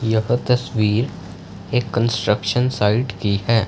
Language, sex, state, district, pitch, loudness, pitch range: Hindi, male, Punjab, Fazilka, 110 Hz, -20 LUFS, 100-120 Hz